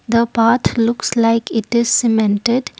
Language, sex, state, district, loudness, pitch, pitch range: English, female, Assam, Kamrup Metropolitan, -16 LUFS, 230 Hz, 225-235 Hz